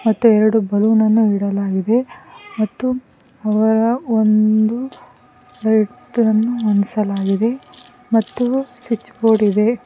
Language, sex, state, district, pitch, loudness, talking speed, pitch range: Kannada, female, Karnataka, Koppal, 220 Hz, -17 LUFS, 90 wpm, 215-245 Hz